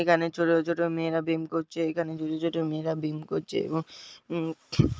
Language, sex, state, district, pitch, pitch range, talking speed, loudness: Bengali, male, West Bengal, Jhargram, 165 Hz, 160-165 Hz, 180 wpm, -29 LUFS